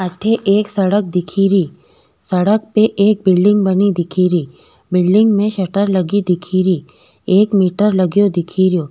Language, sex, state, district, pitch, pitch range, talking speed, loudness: Rajasthani, female, Rajasthan, Nagaur, 195 Hz, 180-205 Hz, 155 wpm, -15 LUFS